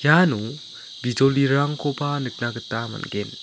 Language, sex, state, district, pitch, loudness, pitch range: Garo, male, Meghalaya, South Garo Hills, 135 Hz, -23 LUFS, 120-145 Hz